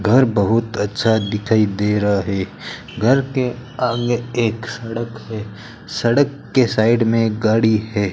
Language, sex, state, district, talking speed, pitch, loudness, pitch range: Hindi, male, Rajasthan, Bikaner, 140 wpm, 115 Hz, -18 LUFS, 105-120 Hz